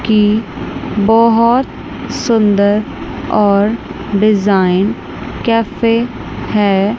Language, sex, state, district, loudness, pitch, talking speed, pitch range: Hindi, female, Chandigarh, Chandigarh, -14 LUFS, 220 Hz, 60 wpm, 205-230 Hz